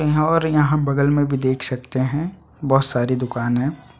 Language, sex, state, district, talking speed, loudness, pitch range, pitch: Hindi, male, Chhattisgarh, Sukma, 195 wpm, -20 LUFS, 130-150 Hz, 140 Hz